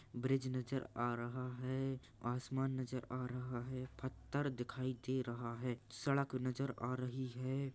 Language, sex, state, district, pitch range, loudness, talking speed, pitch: Hindi, male, Chhattisgarh, Rajnandgaon, 125-130 Hz, -42 LUFS, 155 wpm, 130 Hz